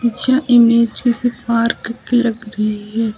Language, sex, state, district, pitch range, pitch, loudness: Hindi, female, Uttar Pradesh, Lucknow, 225-240 Hz, 235 Hz, -16 LUFS